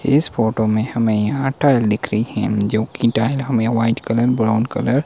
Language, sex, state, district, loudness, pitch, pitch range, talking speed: Hindi, male, Himachal Pradesh, Shimla, -18 LUFS, 115 Hz, 110-130 Hz, 215 wpm